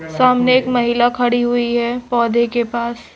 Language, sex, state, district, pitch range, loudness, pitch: Hindi, female, Chhattisgarh, Raipur, 235-245 Hz, -16 LUFS, 240 Hz